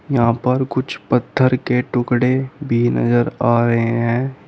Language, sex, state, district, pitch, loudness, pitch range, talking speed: Hindi, male, Uttar Pradesh, Shamli, 125 Hz, -18 LUFS, 120-130 Hz, 145 wpm